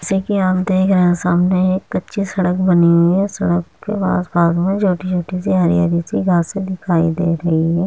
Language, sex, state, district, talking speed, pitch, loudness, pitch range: Hindi, female, Uttar Pradesh, Muzaffarnagar, 200 wpm, 180 Hz, -16 LUFS, 175-190 Hz